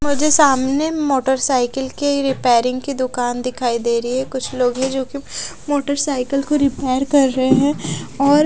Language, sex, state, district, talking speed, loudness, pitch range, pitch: Hindi, female, Odisha, Khordha, 155 wpm, -18 LUFS, 255-285 Hz, 265 Hz